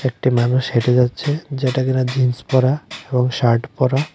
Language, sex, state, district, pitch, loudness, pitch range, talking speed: Bengali, male, Tripura, West Tripura, 130 Hz, -18 LUFS, 125-135 Hz, 160 wpm